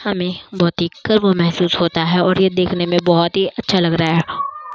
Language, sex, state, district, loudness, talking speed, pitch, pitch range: Hindi, female, Uttar Pradesh, Jyotiba Phule Nagar, -16 LUFS, 200 wpm, 180 Hz, 170-195 Hz